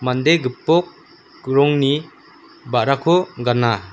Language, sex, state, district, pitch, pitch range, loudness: Garo, female, Meghalaya, West Garo Hills, 140 Hz, 125-160 Hz, -18 LUFS